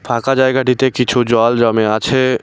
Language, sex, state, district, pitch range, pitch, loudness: Bengali, male, West Bengal, Cooch Behar, 115-130 Hz, 125 Hz, -14 LUFS